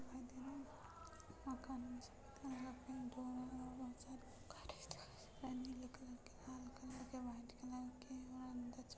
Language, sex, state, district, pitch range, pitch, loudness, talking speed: Hindi, female, Chhattisgarh, Bastar, 250-260 Hz, 255 Hz, -53 LUFS, 120 wpm